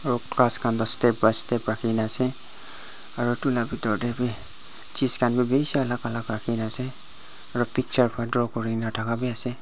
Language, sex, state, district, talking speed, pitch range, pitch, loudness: Nagamese, male, Nagaland, Dimapur, 180 wpm, 110-125 Hz, 120 Hz, -21 LUFS